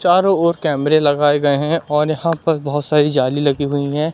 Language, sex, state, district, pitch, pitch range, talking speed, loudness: Hindi, male, Madhya Pradesh, Katni, 150 Hz, 145-165 Hz, 215 wpm, -16 LUFS